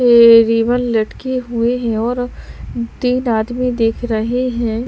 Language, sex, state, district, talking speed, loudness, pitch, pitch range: Hindi, female, Bihar, Patna, 135 wpm, -15 LUFS, 235 Hz, 230-250 Hz